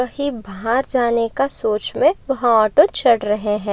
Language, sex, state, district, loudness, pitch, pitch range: Hindi, female, Maharashtra, Aurangabad, -18 LUFS, 235 Hz, 215-270 Hz